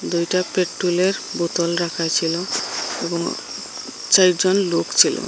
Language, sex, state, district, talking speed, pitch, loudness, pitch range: Bengali, female, Assam, Hailakandi, 100 wpm, 175 Hz, -20 LUFS, 170-185 Hz